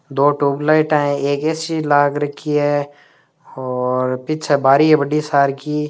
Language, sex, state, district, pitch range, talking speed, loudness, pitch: Hindi, male, Rajasthan, Nagaur, 140-150 Hz, 160 wpm, -17 LUFS, 145 Hz